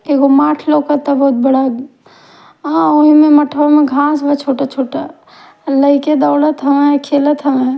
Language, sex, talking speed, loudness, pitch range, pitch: Bhojpuri, female, 115 wpm, -12 LUFS, 275-300 Hz, 285 Hz